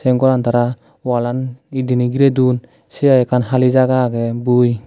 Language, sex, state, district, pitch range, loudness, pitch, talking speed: Chakma, male, Tripura, Dhalai, 120-130 Hz, -16 LUFS, 125 Hz, 185 wpm